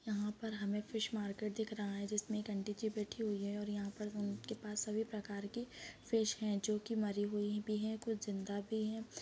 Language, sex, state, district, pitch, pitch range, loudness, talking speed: Hindi, female, Chhattisgarh, Bastar, 210 Hz, 205-220 Hz, -41 LUFS, 235 wpm